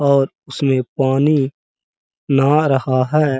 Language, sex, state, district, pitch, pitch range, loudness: Hindi, male, Uttar Pradesh, Jalaun, 135 Hz, 135-145 Hz, -17 LUFS